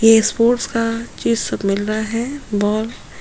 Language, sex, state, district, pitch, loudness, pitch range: Hindi, female, Chhattisgarh, Sukma, 225 Hz, -18 LUFS, 210-230 Hz